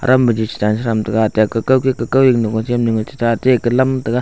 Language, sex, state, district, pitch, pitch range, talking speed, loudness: Wancho, male, Arunachal Pradesh, Longding, 115 Hz, 110-130 Hz, 170 wpm, -15 LUFS